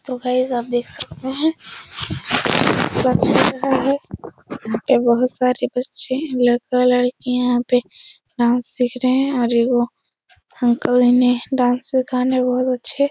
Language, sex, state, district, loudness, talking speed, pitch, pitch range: Hindi, female, Bihar, Supaul, -18 LUFS, 120 wpm, 250 Hz, 245-260 Hz